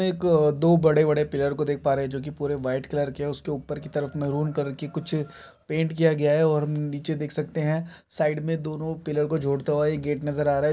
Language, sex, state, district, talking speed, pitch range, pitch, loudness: Maithili, male, Bihar, Samastipur, 255 wpm, 145-155 Hz, 150 Hz, -25 LUFS